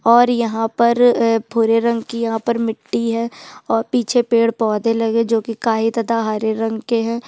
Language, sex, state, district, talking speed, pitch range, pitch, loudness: Hindi, female, Chhattisgarh, Sukma, 180 wpm, 225-235 Hz, 230 Hz, -18 LUFS